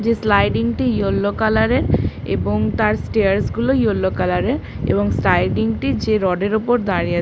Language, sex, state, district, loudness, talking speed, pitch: Bengali, female, West Bengal, Paschim Medinipur, -18 LUFS, 210 wpm, 195 Hz